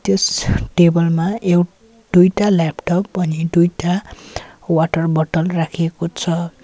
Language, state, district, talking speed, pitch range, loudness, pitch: Nepali, West Bengal, Darjeeling, 110 wpm, 165-185 Hz, -17 LUFS, 170 Hz